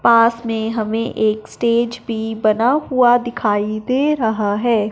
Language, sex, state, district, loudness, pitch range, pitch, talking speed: Hindi, male, Punjab, Fazilka, -17 LUFS, 220-240 Hz, 230 Hz, 145 wpm